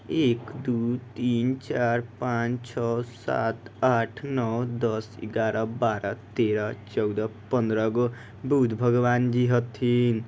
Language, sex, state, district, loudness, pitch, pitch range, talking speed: Maithili, male, Bihar, Vaishali, -26 LUFS, 120 Hz, 110-120 Hz, 105 wpm